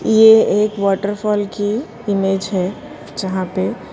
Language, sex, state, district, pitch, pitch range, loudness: Hindi, female, Gujarat, Valsad, 205 Hz, 195-210 Hz, -17 LUFS